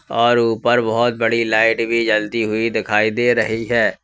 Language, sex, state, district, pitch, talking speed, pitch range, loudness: Hindi, male, Uttar Pradesh, Lalitpur, 115 Hz, 180 wpm, 110-120 Hz, -17 LUFS